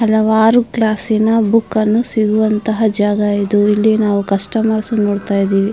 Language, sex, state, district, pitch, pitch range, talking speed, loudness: Kannada, female, Karnataka, Mysore, 215 Hz, 205-220 Hz, 125 wpm, -14 LUFS